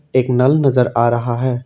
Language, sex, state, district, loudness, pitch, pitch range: Hindi, male, Assam, Kamrup Metropolitan, -15 LUFS, 125 Hz, 120-130 Hz